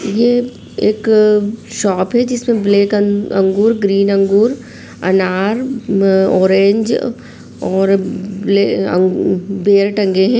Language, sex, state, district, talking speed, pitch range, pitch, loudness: Hindi, female, Jharkhand, Sahebganj, 105 wpm, 195-220 Hz, 200 Hz, -14 LUFS